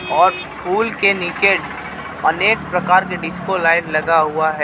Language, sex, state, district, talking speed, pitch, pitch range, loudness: Hindi, male, Jharkhand, Ranchi, 155 wpm, 180 Hz, 165-190 Hz, -16 LUFS